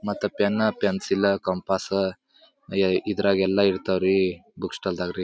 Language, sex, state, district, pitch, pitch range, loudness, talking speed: Kannada, male, Karnataka, Bijapur, 95 Hz, 95-105 Hz, -24 LUFS, 150 wpm